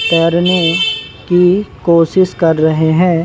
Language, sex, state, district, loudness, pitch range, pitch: Hindi, male, Madhya Pradesh, Bhopal, -12 LUFS, 160-180 Hz, 170 Hz